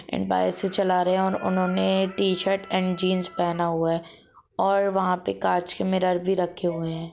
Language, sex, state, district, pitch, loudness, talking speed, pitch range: Hindi, female, Jharkhand, Jamtara, 180 Hz, -24 LUFS, 200 wpm, 165-190 Hz